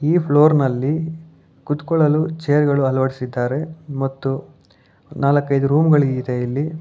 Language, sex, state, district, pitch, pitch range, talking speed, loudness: Kannada, male, Karnataka, Bangalore, 145 Hz, 135-155 Hz, 115 wpm, -18 LUFS